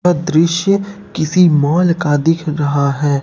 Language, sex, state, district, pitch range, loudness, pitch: Hindi, male, Bihar, Katihar, 145-180 Hz, -14 LUFS, 165 Hz